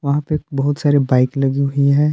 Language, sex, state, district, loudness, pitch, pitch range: Hindi, male, Jharkhand, Palamu, -17 LUFS, 140 Hz, 135-145 Hz